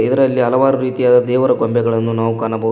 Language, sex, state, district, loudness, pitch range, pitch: Kannada, male, Karnataka, Koppal, -15 LUFS, 115-130 Hz, 125 Hz